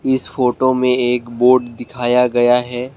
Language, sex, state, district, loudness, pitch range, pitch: Hindi, male, Assam, Kamrup Metropolitan, -15 LUFS, 120-130 Hz, 125 Hz